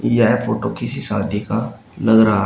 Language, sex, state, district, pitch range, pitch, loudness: Hindi, male, Uttar Pradesh, Shamli, 105-115 Hz, 110 Hz, -18 LUFS